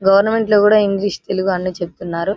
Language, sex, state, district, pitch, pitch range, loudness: Telugu, female, Telangana, Nalgonda, 195 Hz, 185-205 Hz, -16 LUFS